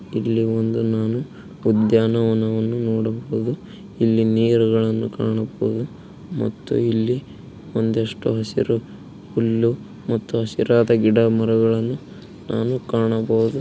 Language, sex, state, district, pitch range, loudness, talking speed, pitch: Kannada, male, Karnataka, Mysore, 110-115 Hz, -20 LUFS, 75 wpm, 115 Hz